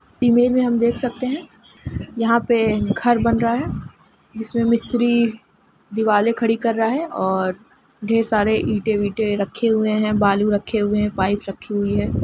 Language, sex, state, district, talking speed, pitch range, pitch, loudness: Hindi, female, Jharkhand, Sahebganj, 155 wpm, 205-235 Hz, 225 Hz, -19 LUFS